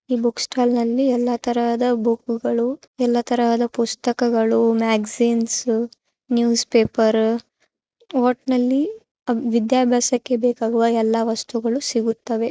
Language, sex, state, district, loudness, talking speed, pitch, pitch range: Kannada, female, Karnataka, Chamarajanagar, -20 LUFS, 80 wpm, 235 Hz, 230-245 Hz